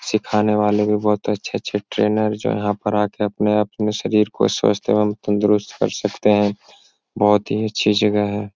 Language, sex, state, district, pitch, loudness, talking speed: Hindi, male, Bihar, Jahanabad, 105 Hz, -19 LUFS, 180 wpm